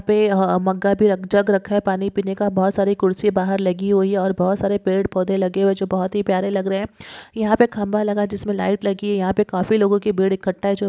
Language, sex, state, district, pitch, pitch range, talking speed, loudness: Hindi, female, Maharashtra, Solapur, 200 Hz, 190-205 Hz, 270 wpm, -19 LUFS